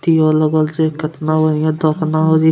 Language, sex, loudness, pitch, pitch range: Angika, male, -15 LUFS, 155 Hz, 155-160 Hz